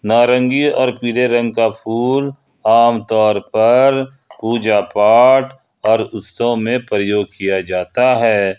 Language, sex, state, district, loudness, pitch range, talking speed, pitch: Hindi, male, Jharkhand, Ranchi, -14 LUFS, 105-125 Hz, 120 wpm, 115 Hz